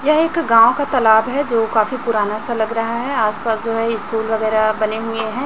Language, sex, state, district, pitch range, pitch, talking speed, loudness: Hindi, female, Chhattisgarh, Raipur, 220-250 Hz, 225 Hz, 240 wpm, -17 LUFS